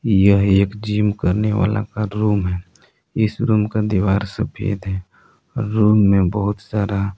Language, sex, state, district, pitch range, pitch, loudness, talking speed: Hindi, male, Jharkhand, Palamu, 100-105 Hz, 105 Hz, -19 LUFS, 165 wpm